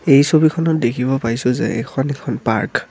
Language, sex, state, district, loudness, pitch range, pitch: Assamese, female, Assam, Kamrup Metropolitan, -17 LUFS, 125-155 Hz, 135 Hz